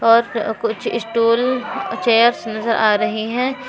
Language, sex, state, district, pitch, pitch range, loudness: Hindi, female, Uttar Pradesh, Shamli, 230 Hz, 225-240 Hz, -18 LUFS